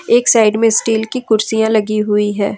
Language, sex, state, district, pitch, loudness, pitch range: Hindi, female, Jharkhand, Ranchi, 220 Hz, -14 LUFS, 210-225 Hz